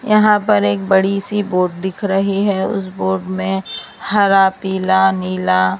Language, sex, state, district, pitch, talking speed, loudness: Hindi, female, Maharashtra, Mumbai Suburban, 190 Hz, 155 wpm, -16 LUFS